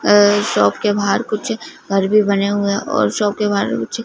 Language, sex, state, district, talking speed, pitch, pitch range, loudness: Hindi, female, Punjab, Fazilka, 205 wpm, 205 Hz, 200-220 Hz, -17 LUFS